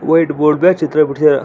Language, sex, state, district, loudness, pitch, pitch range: Kannada, male, Karnataka, Belgaum, -13 LUFS, 155 Hz, 150-165 Hz